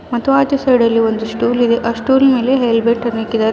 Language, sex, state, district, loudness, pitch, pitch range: Kannada, female, Karnataka, Bidar, -14 LUFS, 235 Hz, 230-265 Hz